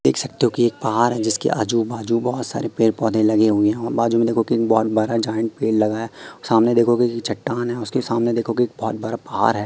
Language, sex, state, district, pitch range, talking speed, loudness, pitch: Hindi, male, Madhya Pradesh, Katni, 110-120 Hz, 260 wpm, -20 LUFS, 115 Hz